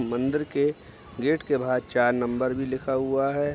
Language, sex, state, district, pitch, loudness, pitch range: Hindi, male, Bihar, Araria, 130 Hz, -26 LUFS, 120-140 Hz